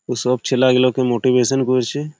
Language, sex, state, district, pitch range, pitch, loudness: Bengali, male, West Bengal, Malda, 125-130 Hz, 130 Hz, -17 LUFS